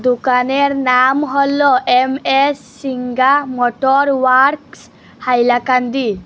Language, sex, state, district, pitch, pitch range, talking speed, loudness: Bengali, female, Assam, Hailakandi, 265 Hz, 250-280 Hz, 85 wpm, -14 LUFS